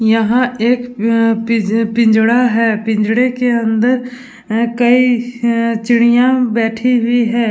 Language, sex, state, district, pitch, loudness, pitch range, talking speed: Hindi, female, Bihar, Vaishali, 235 Hz, -13 LUFS, 225-245 Hz, 130 wpm